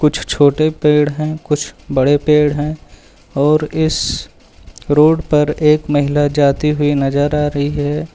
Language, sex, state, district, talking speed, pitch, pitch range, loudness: Hindi, male, Uttar Pradesh, Lucknow, 145 wpm, 150 Hz, 145-150 Hz, -15 LUFS